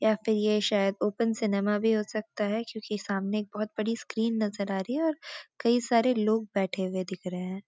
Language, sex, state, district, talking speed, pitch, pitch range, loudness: Hindi, female, Uttarakhand, Uttarkashi, 225 wpm, 215 Hz, 200-225 Hz, -29 LUFS